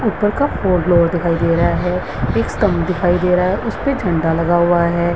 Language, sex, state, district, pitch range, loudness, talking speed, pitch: Hindi, female, Uttarakhand, Uttarkashi, 170-195 Hz, -16 LUFS, 210 wpm, 175 Hz